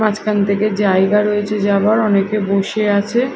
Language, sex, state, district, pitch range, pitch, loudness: Bengali, female, Odisha, Malkangiri, 200-215 Hz, 210 Hz, -15 LUFS